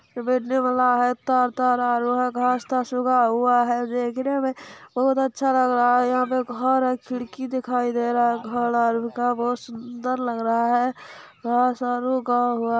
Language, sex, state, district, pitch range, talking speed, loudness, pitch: Hindi, female, Bihar, Sitamarhi, 240-255 Hz, 120 wpm, -22 LUFS, 245 Hz